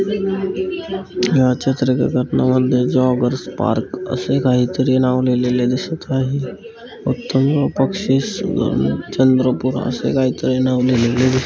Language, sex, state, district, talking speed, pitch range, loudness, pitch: Marathi, male, Maharashtra, Chandrapur, 90 wpm, 125-140 Hz, -18 LUFS, 130 Hz